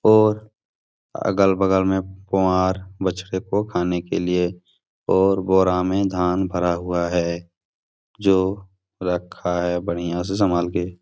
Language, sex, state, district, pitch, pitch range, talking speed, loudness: Hindi, male, Bihar, Supaul, 95 Hz, 90-95 Hz, 130 wpm, -21 LUFS